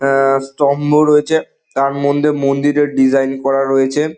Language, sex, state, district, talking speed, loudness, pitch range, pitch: Bengali, male, West Bengal, Dakshin Dinajpur, 130 wpm, -14 LUFS, 135-150 Hz, 140 Hz